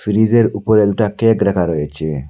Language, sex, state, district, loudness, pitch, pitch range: Bengali, male, Assam, Hailakandi, -15 LUFS, 105 Hz, 85-110 Hz